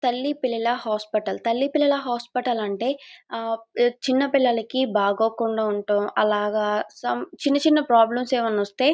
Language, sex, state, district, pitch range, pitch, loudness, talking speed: Telugu, female, Andhra Pradesh, Guntur, 215-265 Hz, 240 Hz, -23 LUFS, 135 wpm